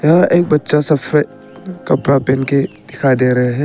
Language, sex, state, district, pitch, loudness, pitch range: Hindi, male, Arunachal Pradesh, Papum Pare, 145 Hz, -14 LUFS, 135-155 Hz